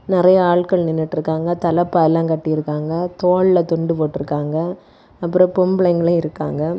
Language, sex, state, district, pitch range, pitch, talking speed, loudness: Tamil, female, Tamil Nadu, Kanyakumari, 160-180 Hz, 170 Hz, 105 wpm, -17 LUFS